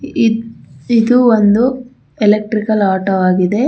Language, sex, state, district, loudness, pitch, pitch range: Kannada, female, Karnataka, Bangalore, -13 LUFS, 220 Hz, 205-245 Hz